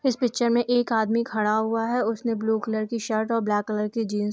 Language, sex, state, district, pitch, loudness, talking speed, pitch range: Hindi, female, Jharkhand, Jamtara, 225 Hz, -24 LUFS, 265 wpm, 215-235 Hz